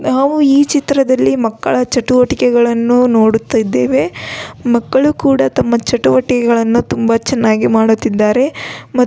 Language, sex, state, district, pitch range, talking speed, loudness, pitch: Kannada, female, Karnataka, Belgaum, 225-260 Hz, 100 wpm, -12 LUFS, 240 Hz